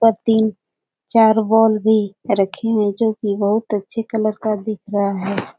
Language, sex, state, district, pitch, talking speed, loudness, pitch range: Hindi, female, Bihar, Jahanabad, 215 Hz, 170 wpm, -18 LUFS, 200-220 Hz